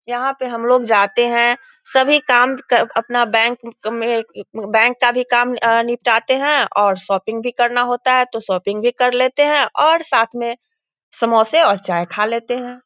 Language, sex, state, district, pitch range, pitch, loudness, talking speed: Hindi, female, Bihar, East Champaran, 225-255 Hz, 240 Hz, -16 LUFS, 175 wpm